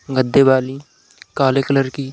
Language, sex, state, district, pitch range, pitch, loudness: Hindi, male, Uttar Pradesh, Budaun, 130-140 Hz, 135 Hz, -16 LUFS